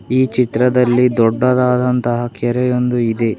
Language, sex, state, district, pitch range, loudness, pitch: Kannada, male, Karnataka, Bangalore, 120-125 Hz, -15 LUFS, 125 Hz